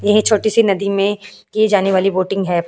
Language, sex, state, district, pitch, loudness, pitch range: Hindi, female, Uttar Pradesh, Hamirpur, 200 Hz, -16 LUFS, 195-210 Hz